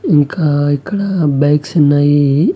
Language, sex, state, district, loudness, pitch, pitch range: Telugu, male, Andhra Pradesh, Annamaya, -13 LUFS, 145 Hz, 145-160 Hz